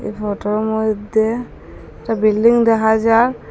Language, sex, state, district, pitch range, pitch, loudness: Bengali, female, Assam, Hailakandi, 215-225 Hz, 220 Hz, -16 LUFS